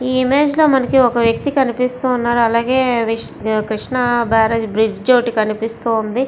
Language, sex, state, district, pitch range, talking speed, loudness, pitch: Telugu, female, Andhra Pradesh, Visakhapatnam, 225-255 Hz, 105 wpm, -16 LUFS, 240 Hz